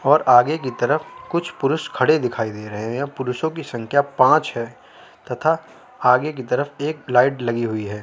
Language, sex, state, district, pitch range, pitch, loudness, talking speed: Hindi, male, Uttar Pradesh, Jalaun, 120-155 Hz, 135 Hz, -20 LUFS, 185 wpm